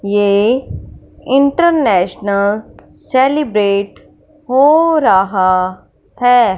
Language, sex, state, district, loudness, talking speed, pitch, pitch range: Hindi, female, Punjab, Fazilka, -13 LUFS, 55 wpm, 230 Hz, 200-280 Hz